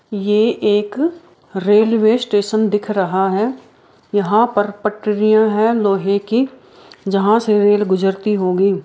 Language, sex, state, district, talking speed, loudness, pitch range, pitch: Hindi, female, Bihar, Saharsa, 120 wpm, -16 LUFS, 200-220 Hz, 210 Hz